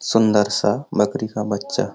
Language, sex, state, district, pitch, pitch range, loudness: Hindi, male, Bihar, Lakhisarai, 105 Hz, 105-110 Hz, -20 LUFS